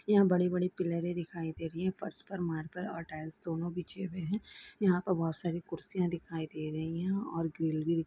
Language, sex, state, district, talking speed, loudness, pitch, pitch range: Hindi, female, Chhattisgarh, Bilaspur, 230 wpm, -35 LUFS, 175 Hz, 165-185 Hz